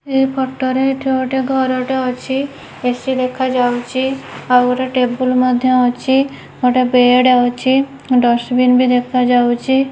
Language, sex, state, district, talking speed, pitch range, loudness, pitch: Odia, female, Odisha, Nuapada, 145 wpm, 250-265 Hz, -15 LUFS, 255 Hz